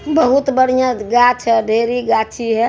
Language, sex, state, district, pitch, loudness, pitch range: Hindi, male, Bihar, Araria, 245 Hz, -15 LUFS, 230-255 Hz